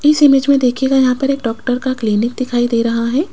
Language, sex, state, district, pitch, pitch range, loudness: Hindi, female, Rajasthan, Jaipur, 255 Hz, 235-270 Hz, -15 LUFS